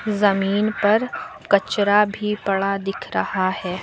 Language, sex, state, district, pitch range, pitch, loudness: Hindi, female, Uttar Pradesh, Lucknow, 195-210 Hz, 205 Hz, -20 LUFS